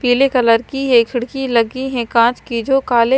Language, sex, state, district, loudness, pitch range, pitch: Hindi, female, Maharashtra, Washim, -15 LUFS, 235-265 Hz, 245 Hz